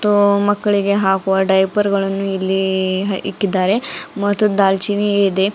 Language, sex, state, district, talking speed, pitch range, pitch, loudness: Kannada, female, Karnataka, Bidar, 95 wpm, 190-205 Hz, 195 Hz, -16 LUFS